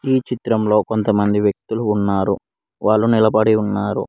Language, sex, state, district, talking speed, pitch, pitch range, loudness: Telugu, male, Telangana, Mahabubabad, 130 wpm, 110 Hz, 105-110 Hz, -18 LUFS